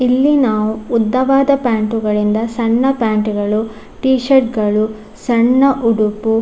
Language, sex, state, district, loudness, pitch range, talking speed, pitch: Kannada, female, Karnataka, Dakshina Kannada, -15 LUFS, 215-255 Hz, 120 wpm, 225 Hz